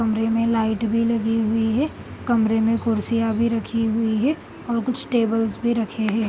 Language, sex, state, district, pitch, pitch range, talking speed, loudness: Hindi, female, Bihar, Gopalganj, 225 Hz, 225-230 Hz, 200 wpm, -22 LUFS